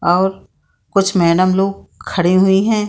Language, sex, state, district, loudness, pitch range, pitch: Hindi, female, Bihar, Saran, -15 LUFS, 175-195 Hz, 190 Hz